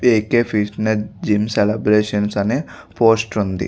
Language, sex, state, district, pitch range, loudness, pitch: Telugu, male, Andhra Pradesh, Visakhapatnam, 105-110 Hz, -18 LUFS, 105 Hz